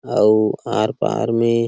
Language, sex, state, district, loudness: Chhattisgarhi, male, Chhattisgarh, Sarguja, -18 LUFS